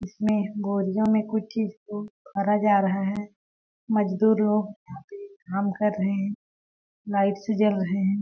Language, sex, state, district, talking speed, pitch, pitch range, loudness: Hindi, female, Chhattisgarh, Balrampur, 145 wpm, 205 Hz, 195-210 Hz, -25 LUFS